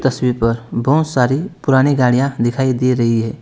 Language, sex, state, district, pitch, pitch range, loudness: Hindi, male, West Bengal, Alipurduar, 125 Hz, 120-135 Hz, -16 LUFS